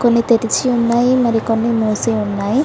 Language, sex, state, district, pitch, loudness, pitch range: Telugu, female, Telangana, Hyderabad, 230 Hz, -15 LUFS, 225-240 Hz